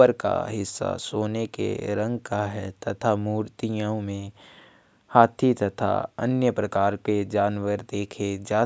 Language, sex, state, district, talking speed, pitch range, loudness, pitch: Hindi, male, Chhattisgarh, Kabirdham, 130 wpm, 100-115 Hz, -26 LUFS, 105 Hz